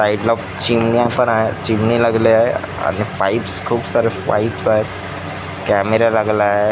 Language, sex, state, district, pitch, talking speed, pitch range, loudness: Marathi, male, Maharashtra, Gondia, 110 Hz, 145 wpm, 100-115 Hz, -16 LUFS